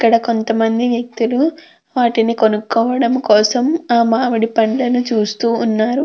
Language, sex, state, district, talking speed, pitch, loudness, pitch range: Telugu, female, Andhra Pradesh, Krishna, 110 wpm, 230 Hz, -15 LUFS, 225-250 Hz